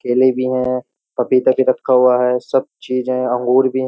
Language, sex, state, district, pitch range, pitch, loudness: Hindi, male, Uttar Pradesh, Jyotiba Phule Nagar, 125-130 Hz, 130 Hz, -16 LUFS